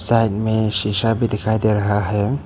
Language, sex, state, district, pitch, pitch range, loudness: Hindi, male, Arunachal Pradesh, Papum Pare, 110 Hz, 105-115 Hz, -19 LUFS